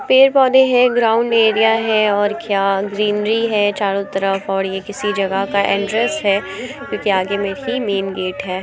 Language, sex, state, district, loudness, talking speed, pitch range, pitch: Hindi, female, Bihar, Muzaffarpur, -16 LUFS, 175 wpm, 195-225 Hz, 205 Hz